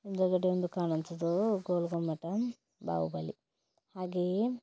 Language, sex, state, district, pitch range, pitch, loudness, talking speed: Kannada, female, Karnataka, Dakshina Kannada, 170-190 Hz, 180 Hz, -33 LUFS, 90 wpm